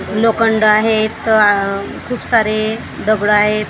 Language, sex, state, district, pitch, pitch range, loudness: Marathi, female, Maharashtra, Gondia, 215 Hz, 210-225 Hz, -14 LUFS